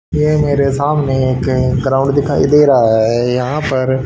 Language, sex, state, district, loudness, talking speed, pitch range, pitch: Hindi, male, Haryana, Charkhi Dadri, -13 LUFS, 165 wpm, 130-145 Hz, 135 Hz